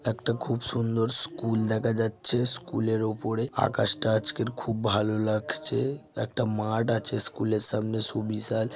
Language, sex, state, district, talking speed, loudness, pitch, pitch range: Bengali, male, West Bengal, Jhargram, 130 wpm, -25 LUFS, 110 Hz, 110-120 Hz